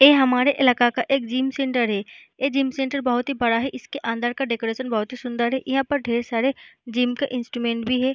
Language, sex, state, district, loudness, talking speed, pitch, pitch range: Hindi, female, Bihar, Jahanabad, -22 LUFS, 235 wpm, 250 Hz, 235-270 Hz